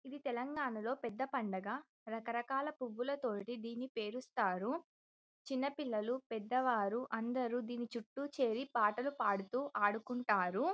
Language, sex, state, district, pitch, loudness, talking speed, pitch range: Telugu, female, Telangana, Karimnagar, 245 Hz, -39 LUFS, 105 wpm, 225-265 Hz